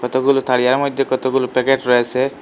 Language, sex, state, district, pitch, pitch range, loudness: Bengali, male, Assam, Hailakandi, 130 Hz, 125-135 Hz, -16 LUFS